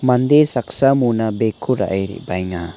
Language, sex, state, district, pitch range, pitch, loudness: Garo, male, Meghalaya, West Garo Hills, 95-130 Hz, 115 Hz, -16 LUFS